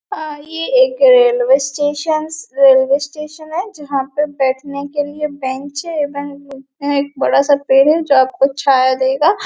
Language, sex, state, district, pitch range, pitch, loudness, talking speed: Hindi, female, Chhattisgarh, Bastar, 275-310 Hz, 285 Hz, -15 LUFS, 170 wpm